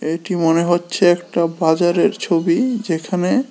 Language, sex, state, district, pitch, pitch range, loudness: Bengali, male, Tripura, West Tripura, 175 Hz, 165-180 Hz, -17 LUFS